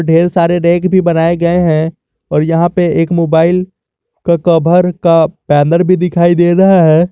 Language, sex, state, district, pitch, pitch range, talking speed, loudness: Hindi, male, Jharkhand, Garhwa, 170 Hz, 165-180 Hz, 175 wpm, -11 LUFS